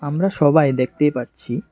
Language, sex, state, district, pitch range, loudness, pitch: Bengali, male, Tripura, West Tripura, 130-155 Hz, -18 LUFS, 145 Hz